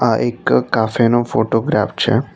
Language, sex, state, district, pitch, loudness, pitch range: Gujarati, male, Gujarat, Navsari, 110 Hz, -16 LUFS, 85-115 Hz